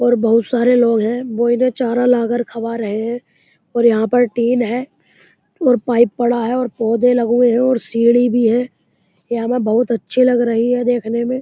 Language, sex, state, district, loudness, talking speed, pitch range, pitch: Hindi, male, Uttar Pradesh, Muzaffarnagar, -16 LUFS, 210 wpm, 230-245 Hz, 240 Hz